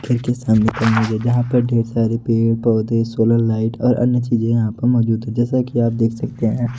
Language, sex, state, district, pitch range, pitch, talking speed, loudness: Hindi, male, Odisha, Nuapada, 115-120 Hz, 115 Hz, 185 wpm, -18 LUFS